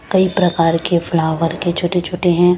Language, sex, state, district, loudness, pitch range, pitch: Hindi, female, Chhattisgarh, Raipur, -16 LUFS, 165-180 Hz, 175 Hz